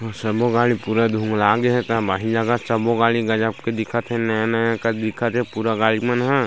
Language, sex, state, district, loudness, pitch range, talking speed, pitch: Chhattisgarhi, male, Chhattisgarh, Sarguja, -20 LUFS, 110-120 Hz, 165 wpm, 115 Hz